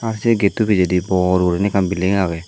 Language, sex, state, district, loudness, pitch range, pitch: Chakma, male, Tripura, Dhalai, -17 LUFS, 90-105 Hz, 95 Hz